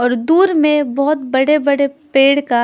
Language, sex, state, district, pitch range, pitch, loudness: Hindi, female, Chhattisgarh, Raipur, 265-300 Hz, 280 Hz, -14 LUFS